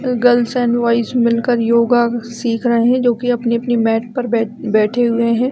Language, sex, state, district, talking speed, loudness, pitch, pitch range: Hindi, female, Chhattisgarh, Balrampur, 205 wpm, -15 LUFS, 235 Hz, 235-245 Hz